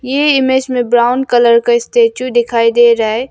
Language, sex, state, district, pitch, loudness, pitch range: Hindi, female, Arunachal Pradesh, Lower Dibang Valley, 240 Hz, -11 LUFS, 235-255 Hz